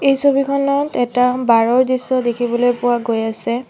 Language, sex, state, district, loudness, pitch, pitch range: Assamese, female, Assam, Sonitpur, -16 LUFS, 245 Hz, 240-270 Hz